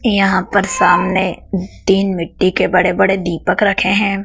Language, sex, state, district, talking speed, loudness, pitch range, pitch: Hindi, female, Madhya Pradesh, Dhar, 155 wpm, -15 LUFS, 185-195 Hz, 190 Hz